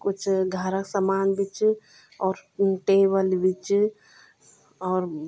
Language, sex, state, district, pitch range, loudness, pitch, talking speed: Garhwali, female, Uttarakhand, Tehri Garhwal, 185-200 Hz, -24 LUFS, 195 Hz, 125 wpm